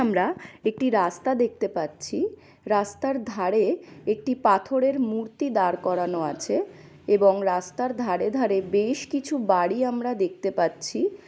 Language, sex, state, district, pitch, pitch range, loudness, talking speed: Bengali, female, West Bengal, Malda, 215 Hz, 185-255 Hz, -25 LUFS, 130 wpm